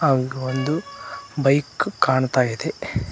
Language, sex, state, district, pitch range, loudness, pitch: Kannada, male, Karnataka, Koppal, 130-155 Hz, -22 LUFS, 135 Hz